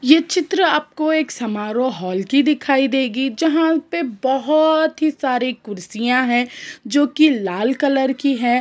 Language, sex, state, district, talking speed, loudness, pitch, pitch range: Hindi, female, Jharkhand, Sahebganj, 145 wpm, -18 LUFS, 270 Hz, 245-310 Hz